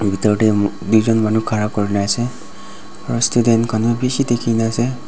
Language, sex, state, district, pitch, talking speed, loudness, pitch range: Nagamese, male, Nagaland, Dimapur, 110 Hz, 175 wpm, -17 LUFS, 105-120 Hz